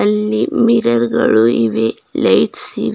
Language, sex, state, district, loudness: Kannada, female, Karnataka, Bidar, -14 LUFS